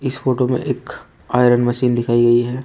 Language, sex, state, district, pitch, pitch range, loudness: Hindi, male, Uttar Pradesh, Shamli, 125 Hz, 120-125 Hz, -17 LUFS